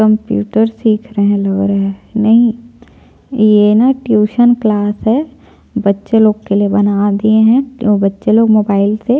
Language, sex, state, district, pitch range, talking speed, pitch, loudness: Hindi, female, Chhattisgarh, Jashpur, 205-225 Hz, 170 wpm, 215 Hz, -12 LUFS